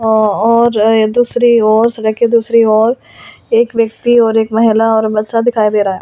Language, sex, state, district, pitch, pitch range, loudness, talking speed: Hindi, female, Delhi, New Delhi, 225 Hz, 220-235 Hz, -11 LUFS, 190 wpm